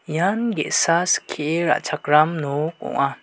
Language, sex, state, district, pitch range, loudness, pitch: Garo, male, Meghalaya, West Garo Hills, 150-170 Hz, -20 LUFS, 155 Hz